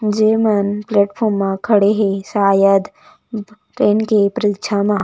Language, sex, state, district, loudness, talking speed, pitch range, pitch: Chhattisgarhi, female, Chhattisgarh, Raigarh, -16 LUFS, 120 wpm, 200-215 Hz, 210 Hz